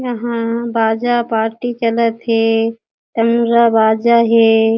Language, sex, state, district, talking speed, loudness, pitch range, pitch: Chhattisgarhi, female, Chhattisgarh, Jashpur, 100 wpm, -14 LUFS, 225-235 Hz, 230 Hz